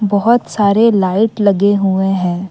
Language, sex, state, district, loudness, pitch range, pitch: Hindi, female, Assam, Kamrup Metropolitan, -13 LUFS, 190-220 Hz, 200 Hz